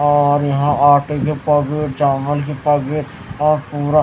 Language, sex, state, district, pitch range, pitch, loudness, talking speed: Hindi, male, Haryana, Rohtak, 145-150 Hz, 145 Hz, -16 LUFS, 150 wpm